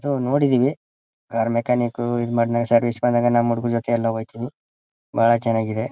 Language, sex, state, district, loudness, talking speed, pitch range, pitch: Kannada, male, Karnataka, Mysore, -21 LUFS, 160 wpm, 115-120 Hz, 120 Hz